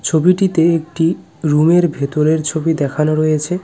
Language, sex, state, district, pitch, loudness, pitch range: Bengali, male, West Bengal, Cooch Behar, 160 Hz, -15 LUFS, 155-170 Hz